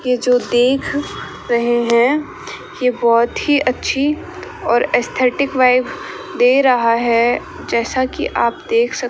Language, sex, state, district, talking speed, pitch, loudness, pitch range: Hindi, female, Rajasthan, Bikaner, 140 wpm, 250 Hz, -16 LUFS, 235-275 Hz